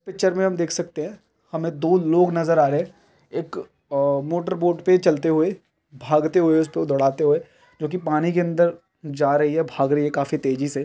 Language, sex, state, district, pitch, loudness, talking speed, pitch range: Hindi, male, Bihar, Jamui, 160 Hz, -21 LUFS, 210 wpm, 145-175 Hz